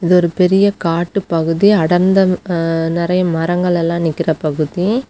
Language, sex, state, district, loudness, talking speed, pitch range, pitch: Tamil, female, Tamil Nadu, Kanyakumari, -15 LUFS, 130 wpm, 165-185 Hz, 175 Hz